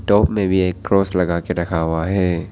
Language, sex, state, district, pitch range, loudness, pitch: Hindi, male, Arunachal Pradesh, Papum Pare, 85-95 Hz, -18 LUFS, 90 Hz